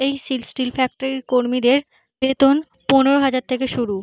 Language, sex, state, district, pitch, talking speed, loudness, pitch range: Bengali, female, West Bengal, Jhargram, 265 Hz, 135 wpm, -19 LUFS, 255-275 Hz